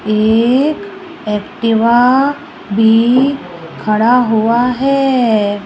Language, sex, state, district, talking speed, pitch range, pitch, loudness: Hindi, female, Rajasthan, Jaipur, 65 wpm, 215-270 Hz, 235 Hz, -12 LUFS